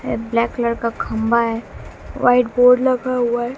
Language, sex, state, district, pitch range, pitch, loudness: Hindi, female, Bihar, West Champaran, 230-245 Hz, 240 Hz, -18 LUFS